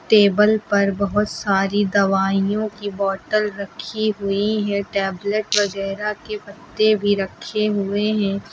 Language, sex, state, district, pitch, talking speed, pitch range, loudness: Hindi, female, Uttar Pradesh, Lucknow, 205 Hz, 125 wpm, 195-210 Hz, -20 LUFS